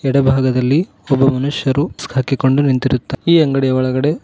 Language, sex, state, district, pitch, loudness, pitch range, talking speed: Kannada, male, Karnataka, Koppal, 135 Hz, -15 LUFS, 130-140 Hz, 125 wpm